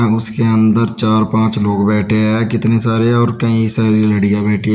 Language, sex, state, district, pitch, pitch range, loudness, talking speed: Hindi, male, Uttar Pradesh, Shamli, 110 Hz, 110-115 Hz, -13 LUFS, 190 wpm